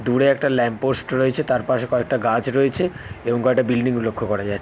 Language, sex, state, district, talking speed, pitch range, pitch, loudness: Bengali, male, West Bengal, North 24 Parganas, 210 wpm, 115-130 Hz, 125 Hz, -20 LUFS